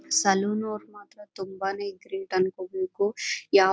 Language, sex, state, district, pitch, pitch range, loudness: Kannada, female, Karnataka, Bellary, 200 Hz, 190-215 Hz, -27 LUFS